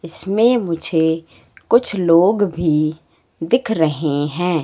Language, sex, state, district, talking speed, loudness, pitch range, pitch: Hindi, female, Madhya Pradesh, Katni, 105 wpm, -17 LUFS, 160-205 Hz, 165 Hz